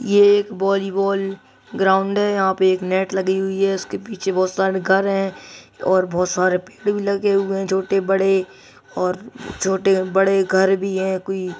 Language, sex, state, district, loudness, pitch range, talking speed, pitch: Hindi, male, Chhattisgarh, Kabirdham, -19 LUFS, 190-195 Hz, 180 wpm, 195 Hz